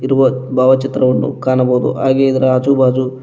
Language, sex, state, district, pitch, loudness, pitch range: Kannada, male, Karnataka, Koppal, 130 Hz, -13 LUFS, 130-135 Hz